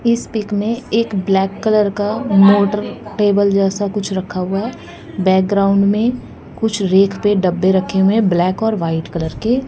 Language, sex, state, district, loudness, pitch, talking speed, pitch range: Hindi, female, Haryana, Jhajjar, -16 LUFS, 200 Hz, 175 wpm, 190-215 Hz